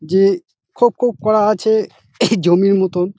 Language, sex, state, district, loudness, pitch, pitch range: Bengali, male, West Bengal, Dakshin Dinajpur, -15 LUFS, 200 Hz, 185-220 Hz